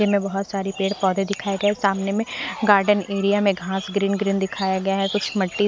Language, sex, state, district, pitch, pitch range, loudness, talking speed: Hindi, female, Haryana, Rohtak, 195 Hz, 195-205 Hz, -22 LUFS, 210 wpm